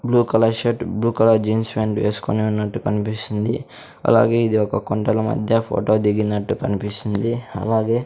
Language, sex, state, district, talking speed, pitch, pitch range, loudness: Telugu, male, Andhra Pradesh, Sri Satya Sai, 140 wpm, 110 Hz, 105-115 Hz, -20 LUFS